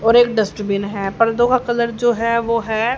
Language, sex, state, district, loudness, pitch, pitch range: Hindi, female, Haryana, Rohtak, -17 LUFS, 230 Hz, 220-240 Hz